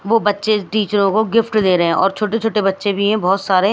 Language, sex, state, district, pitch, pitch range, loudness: Hindi, female, Himachal Pradesh, Shimla, 205 Hz, 195-215 Hz, -16 LUFS